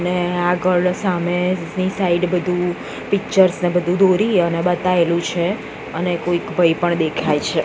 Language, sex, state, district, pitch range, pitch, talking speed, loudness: Gujarati, female, Gujarat, Gandhinagar, 175-185 Hz, 180 Hz, 140 wpm, -18 LUFS